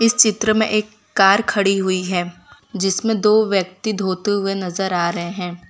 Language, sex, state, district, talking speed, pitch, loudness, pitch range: Hindi, female, Gujarat, Valsad, 180 wpm, 195 Hz, -18 LUFS, 185-215 Hz